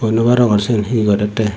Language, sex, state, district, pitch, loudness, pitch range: Chakma, male, Tripura, Dhalai, 110 Hz, -15 LUFS, 105-115 Hz